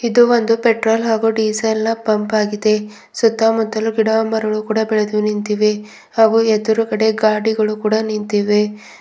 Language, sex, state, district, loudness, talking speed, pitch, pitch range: Kannada, female, Karnataka, Bidar, -16 LUFS, 100 wpm, 220 Hz, 215-225 Hz